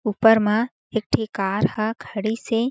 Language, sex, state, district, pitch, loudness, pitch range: Chhattisgarhi, female, Chhattisgarh, Jashpur, 220 Hz, -22 LUFS, 210-225 Hz